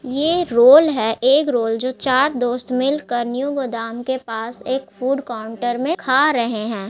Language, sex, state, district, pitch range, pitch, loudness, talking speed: Hindi, female, Bihar, Gaya, 235-275 Hz, 255 Hz, -18 LUFS, 175 wpm